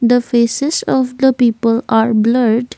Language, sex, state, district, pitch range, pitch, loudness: English, female, Assam, Kamrup Metropolitan, 230-250 Hz, 240 Hz, -14 LUFS